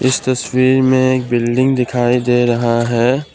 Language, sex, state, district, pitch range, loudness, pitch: Hindi, male, Assam, Kamrup Metropolitan, 120-130 Hz, -14 LUFS, 125 Hz